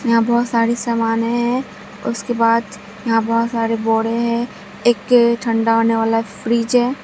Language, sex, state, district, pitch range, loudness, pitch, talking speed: Hindi, female, Bihar, Katihar, 225-235 Hz, -17 LUFS, 230 Hz, 155 wpm